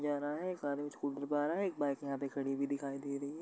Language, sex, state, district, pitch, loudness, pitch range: Hindi, male, Uttar Pradesh, Varanasi, 140 Hz, -38 LUFS, 140-145 Hz